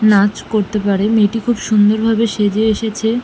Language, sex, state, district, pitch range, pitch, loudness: Bengali, female, West Bengal, Malda, 210-225 Hz, 215 Hz, -15 LUFS